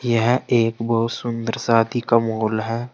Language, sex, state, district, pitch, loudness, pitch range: Hindi, male, Uttar Pradesh, Saharanpur, 115 Hz, -20 LUFS, 115-120 Hz